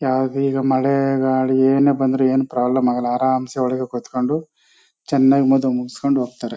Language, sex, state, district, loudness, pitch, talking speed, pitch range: Kannada, male, Karnataka, Chamarajanagar, -18 LUFS, 130 Hz, 145 wpm, 125-135 Hz